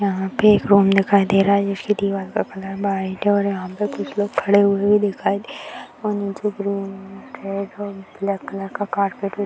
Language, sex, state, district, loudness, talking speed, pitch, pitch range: Hindi, female, Bihar, Purnia, -20 LUFS, 230 wpm, 200 Hz, 195-205 Hz